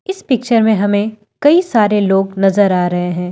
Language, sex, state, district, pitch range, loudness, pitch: Hindi, female, Delhi, New Delhi, 195-240 Hz, -14 LUFS, 205 Hz